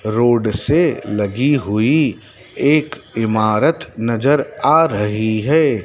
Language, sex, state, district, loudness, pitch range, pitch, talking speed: Hindi, male, Madhya Pradesh, Dhar, -16 LUFS, 110-145 Hz, 115 Hz, 105 wpm